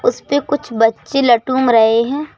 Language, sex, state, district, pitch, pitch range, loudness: Hindi, male, Madhya Pradesh, Bhopal, 260 Hz, 230-290 Hz, -14 LUFS